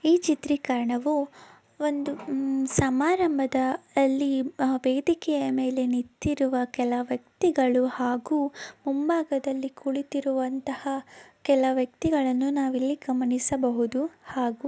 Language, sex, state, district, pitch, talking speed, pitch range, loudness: Kannada, female, Karnataka, Belgaum, 270 Hz, 85 wpm, 255-290 Hz, -26 LUFS